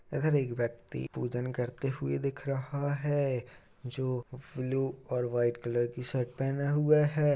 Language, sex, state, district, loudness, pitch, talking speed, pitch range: Hindi, male, Chhattisgarh, Raigarh, -32 LUFS, 130 Hz, 155 wpm, 120-140 Hz